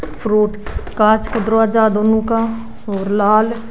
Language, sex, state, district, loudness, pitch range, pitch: Marwari, female, Rajasthan, Nagaur, -16 LUFS, 210-225 Hz, 220 Hz